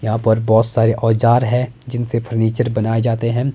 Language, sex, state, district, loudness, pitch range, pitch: Hindi, male, Himachal Pradesh, Shimla, -17 LUFS, 110-120 Hz, 115 Hz